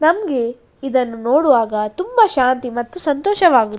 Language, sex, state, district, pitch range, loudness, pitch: Kannada, female, Karnataka, Dakshina Kannada, 240-350 Hz, -16 LUFS, 260 Hz